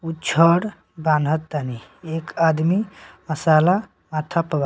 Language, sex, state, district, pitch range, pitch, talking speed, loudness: Bhojpuri, male, Bihar, Muzaffarpur, 155-170 Hz, 160 Hz, 115 wpm, -21 LUFS